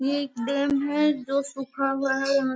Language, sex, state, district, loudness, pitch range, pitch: Hindi, female, Bihar, Gaya, -25 LUFS, 270-280 Hz, 275 Hz